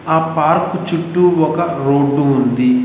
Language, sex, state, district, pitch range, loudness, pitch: Telugu, male, Telangana, Mahabubabad, 140-170 Hz, -15 LUFS, 160 Hz